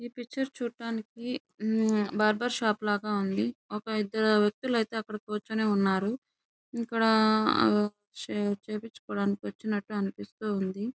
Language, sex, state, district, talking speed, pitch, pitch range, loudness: Telugu, female, Andhra Pradesh, Chittoor, 100 wpm, 215 Hz, 205-230 Hz, -29 LUFS